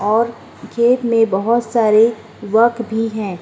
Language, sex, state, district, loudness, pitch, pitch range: Hindi, female, Uttar Pradesh, Muzaffarnagar, -16 LUFS, 225 Hz, 220-235 Hz